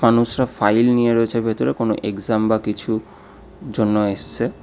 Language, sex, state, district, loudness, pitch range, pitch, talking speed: Bengali, male, West Bengal, Alipurduar, -19 LUFS, 105-115 Hz, 110 Hz, 140 wpm